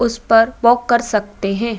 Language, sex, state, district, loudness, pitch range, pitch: Hindi, female, Uttar Pradesh, Budaun, -16 LUFS, 215-235 Hz, 235 Hz